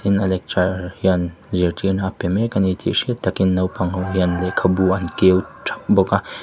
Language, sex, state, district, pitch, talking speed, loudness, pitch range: Mizo, male, Mizoram, Aizawl, 95 Hz, 195 wpm, -19 LUFS, 90-95 Hz